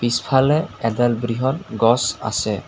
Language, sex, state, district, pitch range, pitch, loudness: Assamese, male, Assam, Kamrup Metropolitan, 115-130 Hz, 120 Hz, -19 LUFS